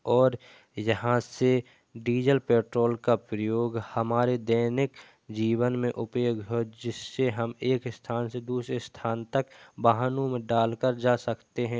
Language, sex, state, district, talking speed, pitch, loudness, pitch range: Hindi, male, Uttar Pradesh, Jalaun, 135 wpm, 120 Hz, -28 LUFS, 115-125 Hz